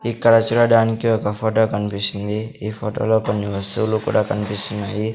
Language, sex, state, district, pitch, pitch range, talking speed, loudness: Telugu, male, Andhra Pradesh, Sri Satya Sai, 110 Hz, 105-110 Hz, 130 wpm, -19 LUFS